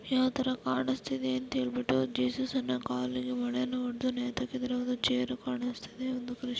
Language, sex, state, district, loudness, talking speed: Kannada, female, Karnataka, Dharwad, -33 LUFS, 145 wpm